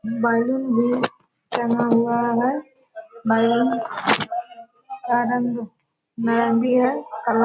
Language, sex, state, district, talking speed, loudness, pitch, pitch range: Hindi, female, Bihar, Purnia, 90 wpm, -21 LUFS, 240 Hz, 235-260 Hz